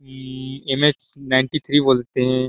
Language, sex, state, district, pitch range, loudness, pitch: Hindi, male, Chhattisgarh, Sarguja, 130-140 Hz, -19 LUFS, 130 Hz